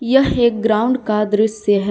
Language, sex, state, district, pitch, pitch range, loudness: Hindi, female, Jharkhand, Palamu, 220 Hz, 210-240 Hz, -16 LUFS